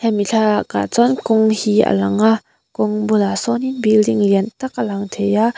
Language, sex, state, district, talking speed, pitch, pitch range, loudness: Mizo, female, Mizoram, Aizawl, 205 wpm, 215 Hz, 205-225 Hz, -16 LUFS